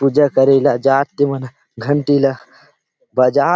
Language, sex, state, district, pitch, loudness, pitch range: Chhattisgarhi, male, Chhattisgarh, Rajnandgaon, 135 Hz, -15 LUFS, 135-145 Hz